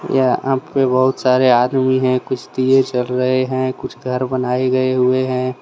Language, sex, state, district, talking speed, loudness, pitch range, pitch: Hindi, male, Jharkhand, Deoghar, 170 wpm, -17 LUFS, 125-130 Hz, 130 Hz